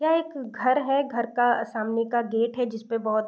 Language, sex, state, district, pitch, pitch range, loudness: Hindi, female, Bihar, East Champaran, 235 Hz, 225-255 Hz, -25 LUFS